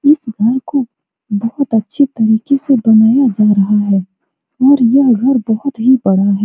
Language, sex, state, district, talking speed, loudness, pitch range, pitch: Hindi, female, Bihar, Supaul, 165 wpm, -12 LUFS, 210-270 Hz, 235 Hz